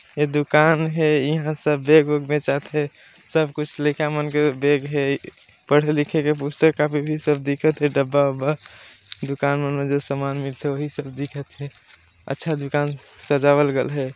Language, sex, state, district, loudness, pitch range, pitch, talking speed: Hindi, male, Chhattisgarh, Balrampur, -21 LUFS, 140-150 Hz, 145 Hz, 185 wpm